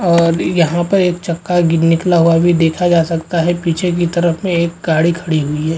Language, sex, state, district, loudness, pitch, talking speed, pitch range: Hindi, male, Chhattisgarh, Bastar, -14 LUFS, 170 Hz, 205 wpm, 165-175 Hz